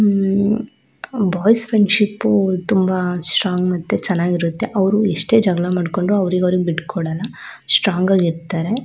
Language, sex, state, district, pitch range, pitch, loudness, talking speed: Kannada, female, Karnataka, Shimoga, 180-210 Hz, 190 Hz, -17 LUFS, 120 wpm